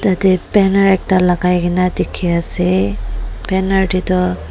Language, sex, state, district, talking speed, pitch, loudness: Nagamese, female, Nagaland, Dimapur, 135 wpm, 180 Hz, -15 LUFS